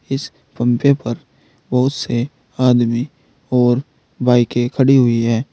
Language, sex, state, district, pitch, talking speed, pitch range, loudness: Hindi, male, Uttar Pradesh, Saharanpur, 125 Hz, 120 wpm, 120-135 Hz, -17 LUFS